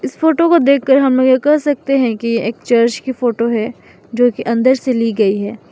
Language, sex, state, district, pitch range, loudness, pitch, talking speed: Hindi, female, Mizoram, Aizawl, 230-270 Hz, -14 LUFS, 245 Hz, 240 wpm